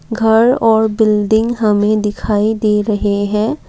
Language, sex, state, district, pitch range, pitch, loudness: Hindi, female, Assam, Kamrup Metropolitan, 210-225 Hz, 215 Hz, -14 LUFS